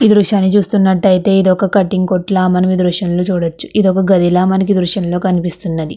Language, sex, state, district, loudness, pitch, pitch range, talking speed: Telugu, female, Andhra Pradesh, Krishna, -13 LUFS, 185 Hz, 180-195 Hz, 180 wpm